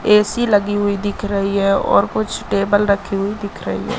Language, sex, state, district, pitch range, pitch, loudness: Hindi, female, Madhya Pradesh, Katni, 195-205 Hz, 200 Hz, -17 LUFS